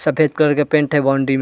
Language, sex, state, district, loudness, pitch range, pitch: Hindi, male, Chhattisgarh, Bilaspur, -16 LUFS, 135-150 Hz, 150 Hz